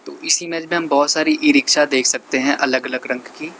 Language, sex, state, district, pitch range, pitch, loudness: Hindi, male, Uttar Pradesh, Lalitpur, 130-175 Hz, 155 Hz, -17 LUFS